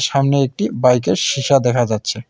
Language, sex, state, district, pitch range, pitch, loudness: Bengali, male, West Bengal, Alipurduar, 110-135 Hz, 125 Hz, -16 LUFS